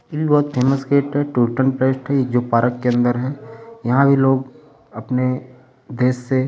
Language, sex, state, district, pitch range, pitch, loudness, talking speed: Hindi, male, Uttar Pradesh, Varanasi, 125-135 Hz, 130 Hz, -18 LUFS, 155 wpm